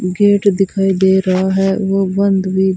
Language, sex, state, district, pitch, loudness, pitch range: Hindi, female, Rajasthan, Bikaner, 190 Hz, -14 LUFS, 190-195 Hz